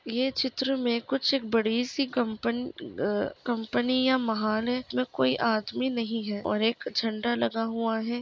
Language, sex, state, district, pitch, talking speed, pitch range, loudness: Hindi, female, Chhattisgarh, Raigarh, 235 Hz, 170 wpm, 225-260 Hz, -28 LUFS